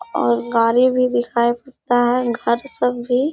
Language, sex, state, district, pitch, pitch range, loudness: Hindi, female, Bihar, Kishanganj, 245 Hz, 235-250 Hz, -18 LUFS